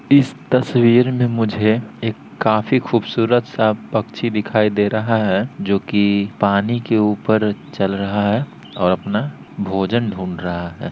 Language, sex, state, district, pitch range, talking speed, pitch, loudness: Hindi, male, Bihar, Gaya, 100-120 Hz, 150 wpm, 110 Hz, -18 LUFS